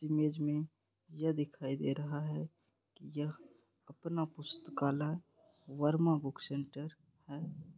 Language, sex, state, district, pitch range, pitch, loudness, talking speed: Hindi, male, Bihar, Supaul, 140-160 Hz, 150 Hz, -38 LUFS, 115 wpm